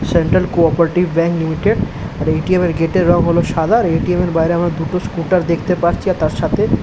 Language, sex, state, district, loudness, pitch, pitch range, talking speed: Bengali, male, West Bengal, Dakshin Dinajpur, -15 LUFS, 170 Hz, 165-180 Hz, 245 wpm